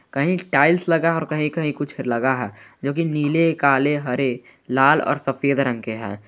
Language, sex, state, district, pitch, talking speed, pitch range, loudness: Hindi, male, Jharkhand, Garhwa, 140 Hz, 190 wpm, 125-155 Hz, -20 LUFS